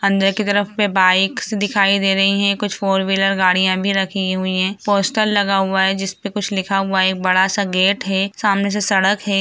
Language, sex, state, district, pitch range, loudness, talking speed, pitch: Hindi, female, Bihar, Lakhisarai, 190-200 Hz, -17 LUFS, 215 wpm, 195 Hz